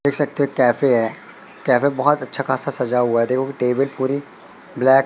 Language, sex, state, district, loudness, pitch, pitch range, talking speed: Hindi, male, Madhya Pradesh, Katni, -19 LUFS, 130 Hz, 125-140 Hz, 200 wpm